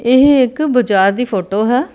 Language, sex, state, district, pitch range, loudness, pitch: Punjabi, female, Karnataka, Bangalore, 205-265 Hz, -13 LUFS, 245 Hz